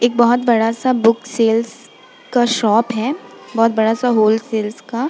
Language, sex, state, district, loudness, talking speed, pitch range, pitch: Hindi, female, Uttar Pradesh, Jalaun, -16 LUFS, 190 wpm, 225-240 Hz, 230 Hz